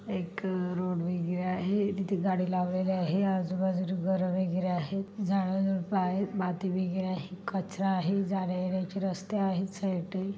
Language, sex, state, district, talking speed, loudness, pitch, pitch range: Marathi, female, Maharashtra, Solapur, 140 wpm, -31 LUFS, 185 Hz, 185-195 Hz